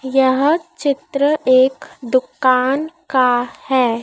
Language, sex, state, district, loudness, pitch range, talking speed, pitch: Hindi, female, Madhya Pradesh, Dhar, -17 LUFS, 255-285 Hz, 90 wpm, 265 Hz